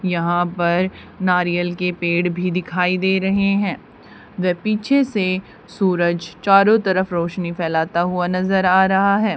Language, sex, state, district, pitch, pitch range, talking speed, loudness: Hindi, female, Haryana, Charkhi Dadri, 180 Hz, 175-195 Hz, 140 wpm, -19 LUFS